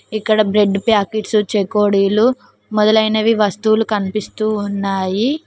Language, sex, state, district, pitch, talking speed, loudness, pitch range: Telugu, female, Telangana, Mahabubabad, 215 Hz, 90 wpm, -16 LUFS, 205-220 Hz